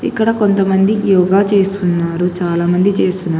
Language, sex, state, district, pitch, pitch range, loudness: Telugu, female, Telangana, Hyderabad, 190 Hz, 175-200 Hz, -14 LUFS